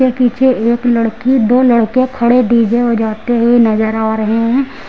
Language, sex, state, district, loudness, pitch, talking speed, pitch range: Hindi, female, Uttar Pradesh, Lucknow, -12 LUFS, 235 Hz, 185 wpm, 225-250 Hz